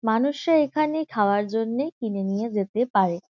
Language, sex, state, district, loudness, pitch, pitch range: Bengali, female, West Bengal, Kolkata, -24 LUFS, 225 Hz, 205-290 Hz